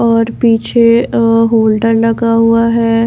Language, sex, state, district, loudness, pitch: Hindi, female, Bihar, Katihar, -11 LUFS, 230 Hz